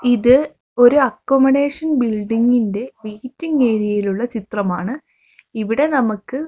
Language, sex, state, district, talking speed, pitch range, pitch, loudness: Malayalam, female, Kerala, Kozhikode, 85 wpm, 215-270 Hz, 245 Hz, -17 LUFS